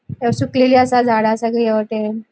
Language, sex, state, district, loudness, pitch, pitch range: Konkani, female, Goa, North and South Goa, -16 LUFS, 225 Hz, 220-245 Hz